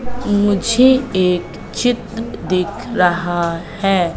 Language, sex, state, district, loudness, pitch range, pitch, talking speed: Hindi, female, Madhya Pradesh, Katni, -17 LUFS, 180-240 Hz, 200 Hz, 85 wpm